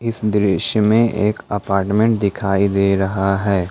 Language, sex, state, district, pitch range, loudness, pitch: Hindi, male, Jharkhand, Ranchi, 95-105 Hz, -17 LUFS, 100 Hz